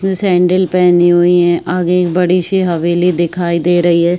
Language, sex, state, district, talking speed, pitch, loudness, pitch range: Hindi, female, Uttar Pradesh, Varanasi, 200 wpm, 175 Hz, -12 LUFS, 175-180 Hz